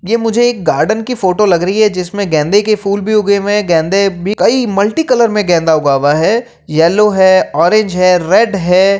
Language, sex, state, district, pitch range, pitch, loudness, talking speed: Hindi, male, Uttar Pradesh, Jyotiba Phule Nagar, 180-215 Hz, 200 Hz, -11 LUFS, 220 wpm